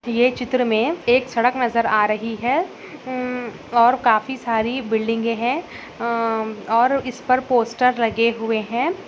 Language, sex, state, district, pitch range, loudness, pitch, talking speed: Hindi, female, Maharashtra, Solapur, 225-250 Hz, -20 LUFS, 235 Hz, 150 wpm